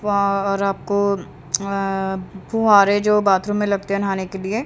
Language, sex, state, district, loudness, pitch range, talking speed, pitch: Hindi, female, Haryana, Rohtak, -19 LUFS, 190-205 Hz, 180 wpm, 200 Hz